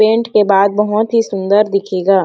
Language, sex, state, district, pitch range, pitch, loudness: Hindi, female, Chhattisgarh, Sarguja, 195-215 Hz, 205 Hz, -13 LUFS